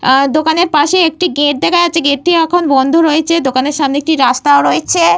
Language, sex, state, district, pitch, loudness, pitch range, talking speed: Bengali, female, Jharkhand, Jamtara, 300 Hz, -11 LUFS, 280-335 Hz, 210 wpm